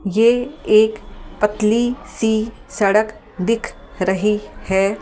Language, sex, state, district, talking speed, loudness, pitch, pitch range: Hindi, female, Delhi, New Delhi, 105 wpm, -18 LUFS, 215 Hz, 210-225 Hz